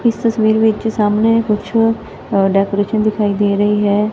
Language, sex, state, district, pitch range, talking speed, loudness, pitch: Punjabi, female, Punjab, Fazilka, 205-225 Hz, 160 wpm, -15 LUFS, 215 Hz